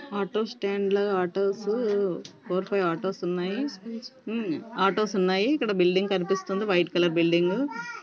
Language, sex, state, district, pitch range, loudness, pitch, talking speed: Telugu, female, Andhra Pradesh, Visakhapatnam, 185-215 Hz, -26 LUFS, 195 Hz, 165 wpm